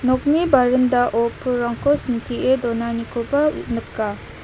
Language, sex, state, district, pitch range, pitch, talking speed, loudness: Garo, female, Meghalaya, South Garo Hills, 235-260 Hz, 245 Hz, 80 wpm, -20 LUFS